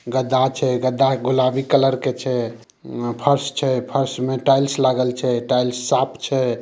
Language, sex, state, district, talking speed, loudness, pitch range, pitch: Maithili, male, Bihar, Samastipur, 155 wpm, -19 LUFS, 125-135 Hz, 130 Hz